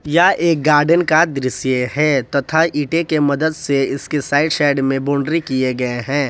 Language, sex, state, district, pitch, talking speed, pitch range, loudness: Hindi, male, Jharkhand, Ranchi, 145 Hz, 170 wpm, 135-155 Hz, -16 LUFS